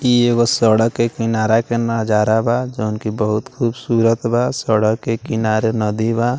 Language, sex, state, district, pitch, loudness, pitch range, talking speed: Bhojpuri, male, Bihar, Muzaffarpur, 115 Hz, -17 LUFS, 110-120 Hz, 170 wpm